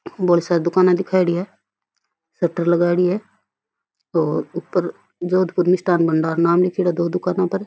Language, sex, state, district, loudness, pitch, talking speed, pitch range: Rajasthani, female, Rajasthan, Churu, -19 LUFS, 180 Hz, 150 wpm, 170-185 Hz